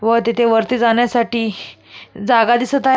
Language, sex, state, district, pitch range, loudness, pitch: Marathi, female, Maharashtra, Solapur, 225-240 Hz, -15 LUFS, 230 Hz